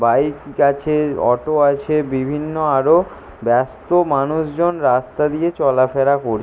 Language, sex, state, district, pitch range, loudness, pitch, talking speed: Bengali, male, West Bengal, Jalpaiguri, 130-150 Hz, -17 LUFS, 140 Hz, 110 wpm